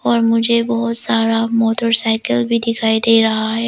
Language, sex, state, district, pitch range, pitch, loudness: Hindi, female, Arunachal Pradesh, Lower Dibang Valley, 225-230 Hz, 230 Hz, -15 LUFS